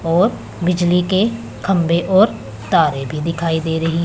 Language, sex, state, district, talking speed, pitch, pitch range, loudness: Hindi, female, Punjab, Pathankot, 165 wpm, 170 Hz, 160-180 Hz, -17 LUFS